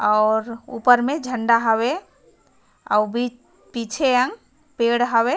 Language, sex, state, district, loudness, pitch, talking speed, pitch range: Chhattisgarhi, female, Chhattisgarh, Raigarh, -20 LUFS, 235 Hz, 125 wpm, 230-250 Hz